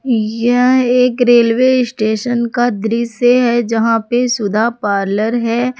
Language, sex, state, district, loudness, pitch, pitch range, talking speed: Hindi, female, Jharkhand, Palamu, -14 LUFS, 235 Hz, 225-245 Hz, 125 wpm